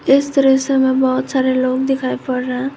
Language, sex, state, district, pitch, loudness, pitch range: Hindi, female, Jharkhand, Garhwa, 265 Hz, -16 LUFS, 255-270 Hz